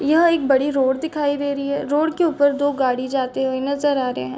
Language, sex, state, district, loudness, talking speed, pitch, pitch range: Hindi, female, Chhattisgarh, Bilaspur, -20 LUFS, 260 wpm, 280 Hz, 265-290 Hz